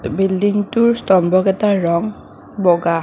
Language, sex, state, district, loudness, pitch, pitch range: Assamese, female, Assam, Kamrup Metropolitan, -16 LUFS, 195 Hz, 175-205 Hz